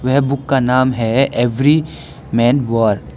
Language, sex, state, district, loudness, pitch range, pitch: Hindi, male, Arunachal Pradesh, Lower Dibang Valley, -15 LUFS, 115-135 Hz, 130 Hz